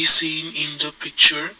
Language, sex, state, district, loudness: English, male, Assam, Kamrup Metropolitan, -15 LUFS